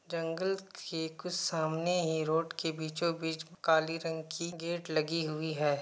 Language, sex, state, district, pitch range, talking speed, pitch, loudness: Hindi, male, Uttar Pradesh, Varanasi, 160-170 Hz, 165 wpm, 165 Hz, -34 LUFS